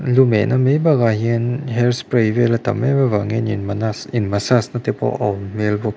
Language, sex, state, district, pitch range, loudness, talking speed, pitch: Mizo, male, Mizoram, Aizawl, 105-125 Hz, -18 LUFS, 210 wpm, 115 Hz